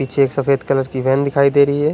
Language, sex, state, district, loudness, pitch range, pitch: Hindi, male, Uttar Pradesh, Budaun, -16 LUFS, 135-140 Hz, 140 Hz